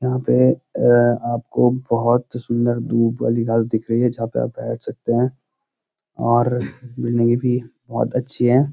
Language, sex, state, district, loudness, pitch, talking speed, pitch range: Hindi, male, Uttarakhand, Uttarkashi, -19 LUFS, 120 Hz, 165 wpm, 115-125 Hz